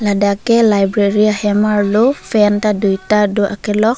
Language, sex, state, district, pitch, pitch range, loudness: Karbi, female, Assam, Karbi Anglong, 210 Hz, 205-215 Hz, -14 LUFS